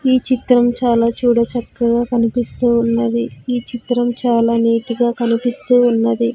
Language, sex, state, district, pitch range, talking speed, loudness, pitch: Telugu, female, Andhra Pradesh, Sri Satya Sai, 235-245 Hz, 130 wpm, -16 LUFS, 240 Hz